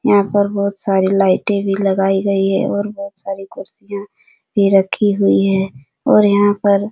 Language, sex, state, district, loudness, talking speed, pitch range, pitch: Hindi, female, Bihar, Supaul, -15 LUFS, 190 wpm, 195-205 Hz, 200 Hz